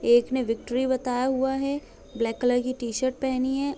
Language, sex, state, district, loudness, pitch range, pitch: Hindi, female, Chhattisgarh, Bilaspur, -26 LUFS, 240-265 Hz, 255 Hz